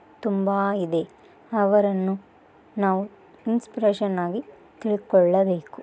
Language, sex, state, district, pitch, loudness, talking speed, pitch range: Kannada, female, Karnataka, Bellary, 200 Hz, -24 LUFS, 50 wpm, 190-210 Hz